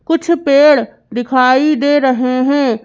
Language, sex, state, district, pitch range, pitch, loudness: Hindi, female, Madhya Pradesh, Bhopal, 255-290 Hz, 270 Hz, -12 LUFS